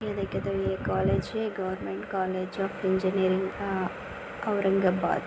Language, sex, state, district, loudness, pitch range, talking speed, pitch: Hindi, female, Maharashtra, Aurangabad, -29 LUFS, 185-195 Hz, 115 wpm, 190 Hz